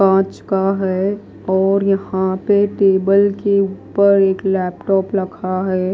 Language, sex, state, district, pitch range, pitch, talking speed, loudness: Hindi, female, Maharashtra, Washim, 190-200 Hz, 195 Hz, 130 wpm, -16 LUFS